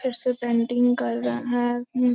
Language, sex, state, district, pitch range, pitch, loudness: Hindi, female, Bihar, Gopalganj, 235-245 Hz, 245 Hz, -24 LUFS